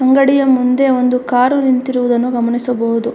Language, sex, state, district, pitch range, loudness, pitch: Kannada, female, Karnataka, Mysore, 245-260 Hz, -13 LUFS, 250 Hz